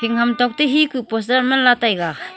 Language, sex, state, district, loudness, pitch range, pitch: Wancho, female, Arunachal Pradesh, Longding, -17 LUFS, 230-260 Hz, 245 Hz